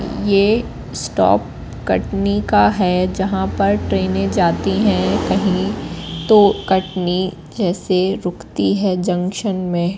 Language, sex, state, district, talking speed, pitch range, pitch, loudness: Hindi, female, Madhya Pradesh, Katni, 110 wpm, 170-195 Hz, 185 Hz, -17 LUFS